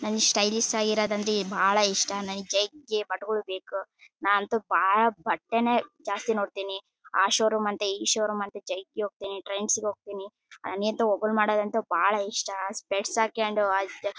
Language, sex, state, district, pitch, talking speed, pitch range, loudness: Kannada, female, Karnataka, Bellary, 205 Hz, 120 wpm, 195-215 Hz, -26 LUFS